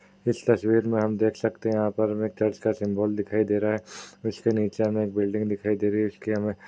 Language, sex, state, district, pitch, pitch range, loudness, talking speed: Hindi, male, Uttar Pradesh, Hamirpur, 110 Hz, 105-110 Hz, -26 LUFS, 260 wpm